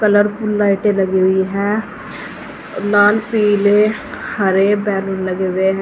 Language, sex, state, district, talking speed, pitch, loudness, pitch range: Hindi, female, Uttar Pradesh, Saharanpur, 125 wpm, 205 Hz, -15 LUFS, 190-210 Hz